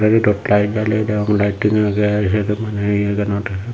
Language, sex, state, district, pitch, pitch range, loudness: Chakma, male, Tripura, Unakoti, 105 Hz, 100-105 Hz, -17 LUFS